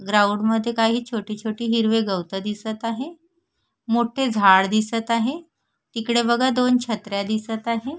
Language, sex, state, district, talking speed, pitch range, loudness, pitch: Marathi, female, Maharashtra, Sindhudurg, 140 wpm, 215-235 Hz, -21 LUFS, 230 Hz